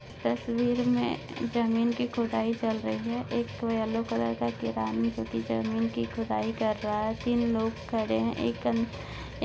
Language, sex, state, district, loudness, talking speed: Hindi, female, Maharashtra, Solapur, -30 LUFS, 180 wpm